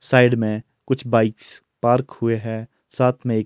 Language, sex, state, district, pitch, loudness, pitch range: Hindi, male, Himachal Pradesh, Shimla, 115 Hz, -21 LUFS, 110-125 Hz